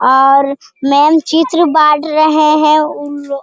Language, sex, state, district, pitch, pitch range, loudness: Hindi, female, Bihar, Jamui, 300 Hz, 280-310 Hz, -11 LUFS